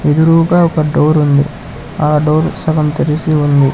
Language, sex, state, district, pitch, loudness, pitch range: Telugu, male, Telangana, Hyderabad, 150 Hz, -12 LUFS, 150-160 Hz